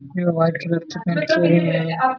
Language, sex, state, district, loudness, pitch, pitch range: Hindi, male, Jharkhand, Jamtara, -19 LUFS, 170 Hz, 165-175 Hz